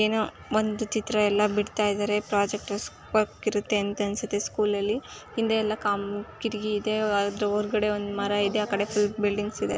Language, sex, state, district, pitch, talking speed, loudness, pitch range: Kannada, female, Karnataka, Chamarajanagar, 210 Hz, 160 wpm, -27 LUFS, 205-215 Hz